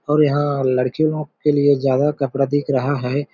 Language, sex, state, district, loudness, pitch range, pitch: Hindi, male, Chhattisgarh, Balrampur, -18 LUFS, 135-145 Hz, 145 Hz